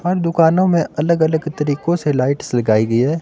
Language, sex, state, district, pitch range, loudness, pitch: Hindi, male, Himachal Pradesh, Shimla, 140-170 Hz, -16 LUFS, 160 Hz